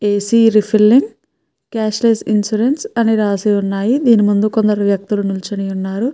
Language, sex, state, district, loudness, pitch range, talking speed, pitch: Telugu, female, Andhra Pradesh, Chittoor, -15 LUFS, 205-230 Hz, 125 wpm, 215 Hz